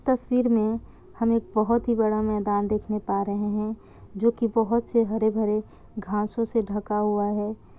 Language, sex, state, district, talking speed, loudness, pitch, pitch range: Hindi, female, Bihar, Kishanganj, 160 wpm, -25 LUFS, 215 Hz, 210-230 Hz